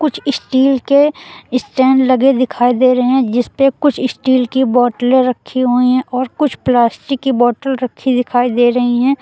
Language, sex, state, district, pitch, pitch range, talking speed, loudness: Hindi, female, Uttar Pradesh, Lucknow, 255 Hz, 245-270 Hz, 170 wpm, -14 LUFS